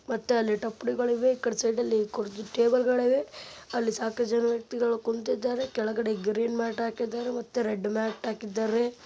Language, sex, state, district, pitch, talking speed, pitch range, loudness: Kannada, male, Karnataka, Bellary, 230 Hz, 125 wpm, 225-240 Hz, -28 LUFS